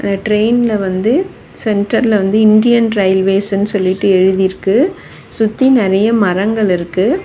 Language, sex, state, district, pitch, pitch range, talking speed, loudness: Tamil, female, Tamil Nadu, Chennai, 205 Hz, 195-225 Hz, 100 wpm, -13 LUFS